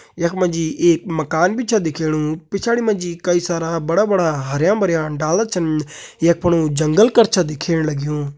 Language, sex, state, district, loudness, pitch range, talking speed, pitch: Kumaoni, male, Uttarakhand, Uttarkashi, -18 LUFS, 155-180 Hz, 170 wpm, 170 Hz